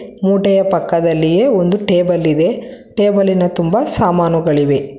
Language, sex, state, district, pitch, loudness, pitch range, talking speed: Kannada, female, Karnataka, Bangalore, 180 Hz, -14 LUFS, 165-195 Hz, 120 wpm